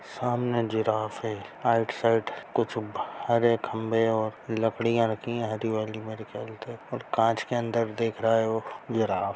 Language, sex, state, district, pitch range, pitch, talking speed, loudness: Hindi, male, Bihar, Jahanabad, 110-115 Hz, 115 Hz, 165 wpm, -28 LUFS